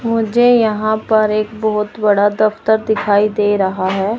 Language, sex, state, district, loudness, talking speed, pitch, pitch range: Hindi, male, Chandigarh, Chandigarh, -15 LUFS, 155 wpm, 215 Hz, 205-220 Hz